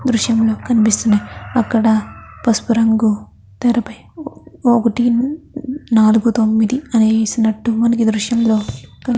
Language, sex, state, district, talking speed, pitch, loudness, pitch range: Telugu, female, Andhra Pradesh, Chittoor, 110 wpm, 230 Hz, -15 LUFS, 220-240 Hz